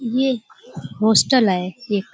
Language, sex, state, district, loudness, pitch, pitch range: Hindi, female, Uttar Pradesh, Budaun, -18 LUFS, 220 Hz, 200-250 Hz